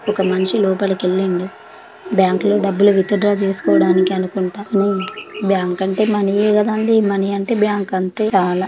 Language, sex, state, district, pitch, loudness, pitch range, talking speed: Telugu, female, Andhra Pradesh, Chittoor, 195 Hz, -17 LUFS, 190-205 Hz, 140 wpm